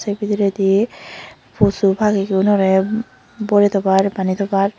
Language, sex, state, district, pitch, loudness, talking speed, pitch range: Chakma, female, Tripura, Unakoti, 200 Hz, -17 LUFS, 115 wpm, 195-205 Hz